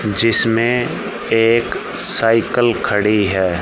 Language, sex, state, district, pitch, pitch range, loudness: Hindi, male, Haryana, Charkhi Dadri, 115 Hz, 105-115 Hz, -15 LUFS